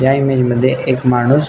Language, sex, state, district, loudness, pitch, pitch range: Marathi, male, Maharashtra, Nagpur, -14 LUFS, 130 Hz, 125-135 Hz